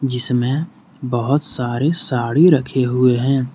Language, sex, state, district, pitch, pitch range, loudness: Hindi, male, Jharkhand, Deoghar, 130 Hz, 125-140 Hz, -17 LUFS